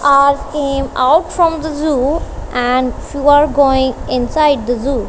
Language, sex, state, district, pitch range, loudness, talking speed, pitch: English, female, Punjab, Kapurthala, 255-295 Hz, -14 LUFS, 140 wpm, 280 Hz